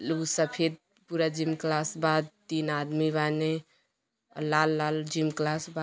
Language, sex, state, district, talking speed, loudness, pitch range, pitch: Hindi, female, Uttar Pradesh, Gorakhpur, 155 wpm, -29 LUFS, 155-160 Hz, 155 Hz